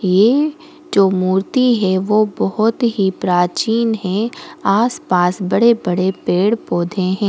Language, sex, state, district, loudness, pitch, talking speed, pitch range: Hindi, female, Goa, North and South Goa, -16 LUFS, 200 Hz, 130 wpm, 185-225 Hz